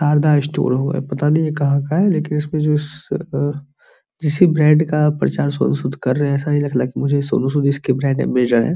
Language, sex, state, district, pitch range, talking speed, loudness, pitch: Hindi, male, Bihar, Araria, 140-150 Hz, 265 wpm, -18 LUFS, 145 Hz